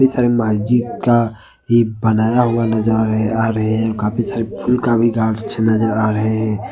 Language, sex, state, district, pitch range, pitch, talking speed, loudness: Hindi, male, Jharkhand, Ranchi, 110-120 Hz, 110 Hz, 195 wpm, -16 LUFS